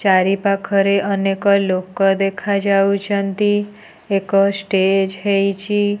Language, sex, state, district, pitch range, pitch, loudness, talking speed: Odia, female, Odisha, Nuapada, 195-200 Hz, 195 Hz, -17 LUFS, 70 wpm